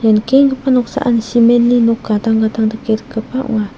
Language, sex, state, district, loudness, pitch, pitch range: Garo, female, Meghalaya, South Garo Hills, -14 LUFS, 230 Hz, 220-250 Hz